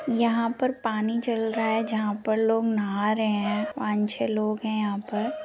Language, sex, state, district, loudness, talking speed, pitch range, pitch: Hindi, female, Bihar, Saran, -26 LUFS, 210 wpm, 210-230 Hz, 220 Hz